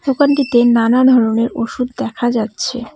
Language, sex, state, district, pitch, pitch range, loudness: Bengali, female, West Bengal, Cooch Behar, 240 Hz, 230-255 Hz, -14 LUFS